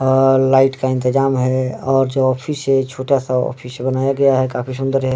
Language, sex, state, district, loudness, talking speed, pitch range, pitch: Hindi, male, Bihar, Darbhanga, -17 LUFS, 210 wpm, 130-135 Hz, 130 Hz